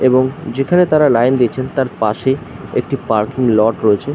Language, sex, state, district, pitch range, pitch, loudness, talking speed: Bengali, male, West Bengal, Jhargram, 115-135 Hz, 130 Hz, -15 LUFS, 145 wpm